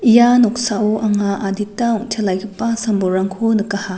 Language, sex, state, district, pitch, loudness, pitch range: Garo, female, Meghalaya, West Garo Hills, 210 Hz, -17 LUFS, 200-230 Hz